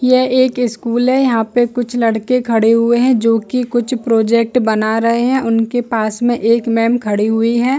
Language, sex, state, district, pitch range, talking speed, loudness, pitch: Hindi, female, Chhattisgarh, Bilaspur, 225-250 Hz, 200 wpm, -14 LUFS, 235 Hz